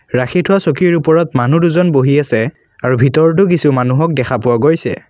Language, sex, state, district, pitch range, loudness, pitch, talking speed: Assamese, male, Assam, Kamrup Metropolitan, 125-170 Hz, -12 LUFS, 155 Hz, 175 wpm